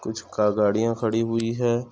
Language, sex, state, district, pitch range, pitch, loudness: Hindi, male, Chhattisgarh, Korba, 110-115 Hz, 115 Hz, -24 LUFS